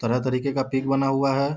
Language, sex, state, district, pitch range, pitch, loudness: Hindi, male, Bihar, Darbhanga, 130-135 Hz, 135 Hz, -23 LUFS